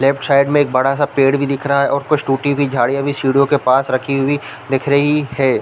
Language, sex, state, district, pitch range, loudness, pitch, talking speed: Hindi, male, Chhattisgarh, Bilaspur, 135-140 Hz, -15 LUFS, 140 Hz, 275 wpm